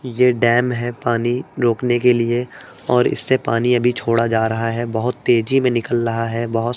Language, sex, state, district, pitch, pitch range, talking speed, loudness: Hindi, male, Uttar Pradesh, Etah, 120 Hz, 115-125 Hz, 205 wpm, -18 LUFS